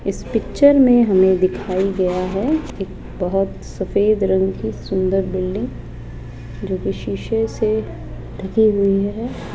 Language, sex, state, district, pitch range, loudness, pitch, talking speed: Hindi, female, Rajasthan, Jaipur, 185-205 Hz, -18 LUFS, 190 Hz, 125 wpm